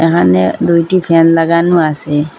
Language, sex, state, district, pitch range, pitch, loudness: Bengali, female, Assam, Hailakandi, 150-170 Hz, 165 Hz, -11 LUFS